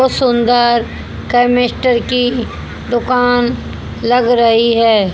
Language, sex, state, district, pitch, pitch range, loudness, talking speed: Hindi, female, Haryana, Jhajjar, 245 Hz, 235-245 Hz, -13 LUFS, 95 wpm